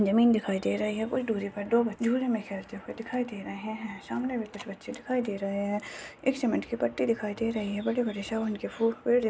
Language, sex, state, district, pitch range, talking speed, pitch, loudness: Hindi, female, Chhattisgarh, Sarguja, 205-235 Hz, 260 wpm, 220 Hz, -30 LUFS